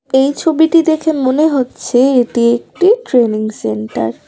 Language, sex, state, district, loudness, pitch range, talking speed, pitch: Bengali, female, West Bengal, Cooch Behar, -13 LUFS, 235-315 Hz, 140 wpm, 265 Hz